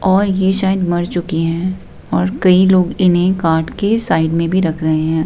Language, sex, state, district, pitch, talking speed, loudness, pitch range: Hindi, female, Himachal Pradesh, Shimla, 175 Hz, 205 wpm, -15 LUFS, 160-190 Hz